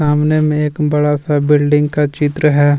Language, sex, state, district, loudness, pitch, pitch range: Hindi, male, Jharkhand, Deoghar, -14 LUFS, 150 Hz, 145-150 Hz